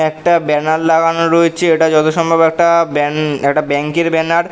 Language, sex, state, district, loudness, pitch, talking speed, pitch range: Bengali, male, West Bengal, North 24 Parganas, -13 LUFS, 160 Hz, 170 wpm, 155-165 Hz